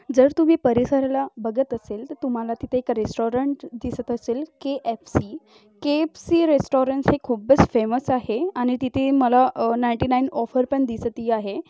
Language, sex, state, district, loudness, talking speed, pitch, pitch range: Marathi, female, Maharashtra, Aurangabad, -22 LUFS, 150 wpm, 255 Hz, 235-275 Hz